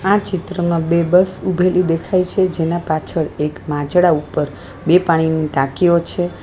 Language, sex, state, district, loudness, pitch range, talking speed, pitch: Gujarati, female, Gujarat, Valsad, -17 LUFS, 155-180 Hz, 150 wpm, 170 Hz